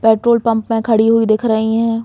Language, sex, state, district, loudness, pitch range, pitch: Hindi, female, Chhattisgarh, Bastar, -14 LUFS, 220-230 Hz, 225 Hz